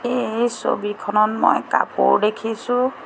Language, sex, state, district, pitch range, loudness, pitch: Assamese, female, Assam, Sonitpur, 215-245 Hz, -20 LUFS, 225 Hz